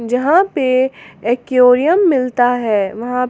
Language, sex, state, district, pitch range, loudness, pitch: Hindi, female, Jharkhand, Garhwa, 245-265 Hz, -14 LUFS, 250 Hz